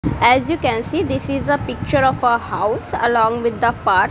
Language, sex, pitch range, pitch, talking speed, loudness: English, female, 235-260 Hz, 235 Hz, 220 wpm, -18 LUFS